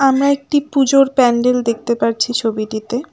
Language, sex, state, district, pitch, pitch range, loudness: Bengali, female, West Bengal, Alipurduar, 250 Hz, 230-275 Hz, -16 LUFS